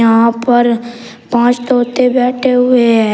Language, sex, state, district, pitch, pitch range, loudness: Hindi, male, Uttar Pradesh, Shamli, 240 Hz, 235-250 Hz, -12 LUFS